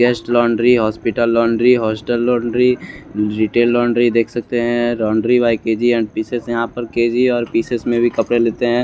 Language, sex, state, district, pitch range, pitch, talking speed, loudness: Hindi, male, Chandigarh, Chandigarh, 115-120 Hz, 120 Hz, 175 wpm, -16 LUFS